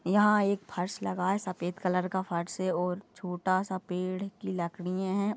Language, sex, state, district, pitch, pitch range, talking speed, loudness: Hindi, female, Goa, North and South Goa, 185 Hz, 180-195 Hz, 190 wpm, -31 LUFS